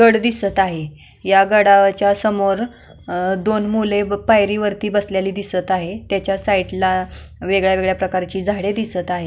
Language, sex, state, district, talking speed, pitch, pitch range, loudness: Marathi, female, Maharashtra, Pune, 130 wpm, 195 Hz, 190-205 Hz, -17 LUFS